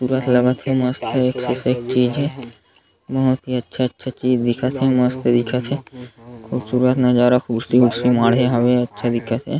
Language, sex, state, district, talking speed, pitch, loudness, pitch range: Chhattisgarhi, male, Chhattisgarh, Sarguja, 160 wpm, 125 Hz, -18 LUFS, 120-130 Hz